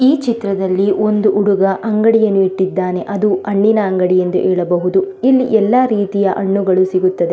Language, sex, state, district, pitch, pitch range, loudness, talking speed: Kannada, female, Karnataka, Belgaum, 195 Hz, 185-215 Hz, -14 LUFS, 140 wpm